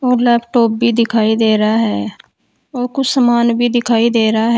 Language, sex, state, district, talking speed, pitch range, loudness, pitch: Hindi, female, Uttar Pradesh, Saharanpur, 195 wpm, 225-240 Hz, -14 LUFS, 235 Hz